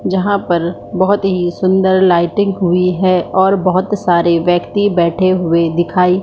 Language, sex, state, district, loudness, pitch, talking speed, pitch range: Hindi, female, Jharkhand, Sahebganj, -13 LUFS, 185 Hz, 145 wpm, 175-190 Hz